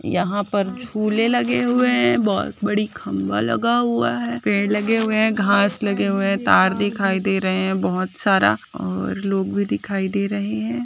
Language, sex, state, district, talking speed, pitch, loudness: Hindi, female, Bihar, Purnia, 190 wpm, 195 Hz, -20 LUFS